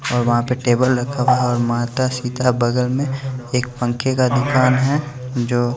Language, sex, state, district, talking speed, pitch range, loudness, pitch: Hindi, male, Bihar, West Champaran, 175 wpm, 120-130 Hz, -18 LUFS, 125 Hz